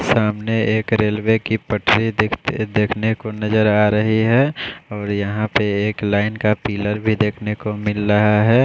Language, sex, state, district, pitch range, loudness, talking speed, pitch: Hindi, male, Odisha, Khordha, 105-110 Hz, -18 LUFS, 160 wpm, 105 Hz